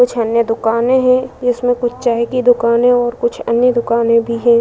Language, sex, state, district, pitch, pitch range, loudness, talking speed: Hindi, female, Uttar Pradesh, Budaun, 240 Hz, 235-245 Hz, -14 LUFS, 195 wpm